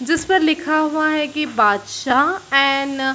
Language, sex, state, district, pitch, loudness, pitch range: Hindi, female, Chhattisgarh, Bilaspur, 300 Hz, -17 LUFS, 270-310 Hz